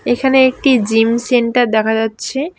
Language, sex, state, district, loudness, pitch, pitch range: Bengali, female, West Bengal, Cooch Behar, -14 LUFS, 240 Hz, 225-265 Hz